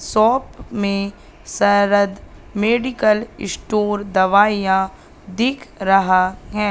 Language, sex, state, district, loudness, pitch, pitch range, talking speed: Hindi, female, Madhya Pradesh, Katni, -18 LUFS, 205 Hz, 195-215 Hz, 80 wpm